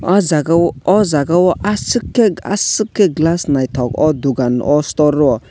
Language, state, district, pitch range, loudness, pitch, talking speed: Kokborok, Tripura, West Tripura, 145-195 Hz, -14 LUFS, 165 Hz, 185 wpm